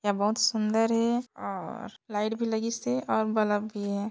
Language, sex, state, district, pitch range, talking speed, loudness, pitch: Chhattisgarhi, female, Chhattisgarh, Sarguja, 210-230 Hz, 175 wpm, -28 LUFS, 220 Hz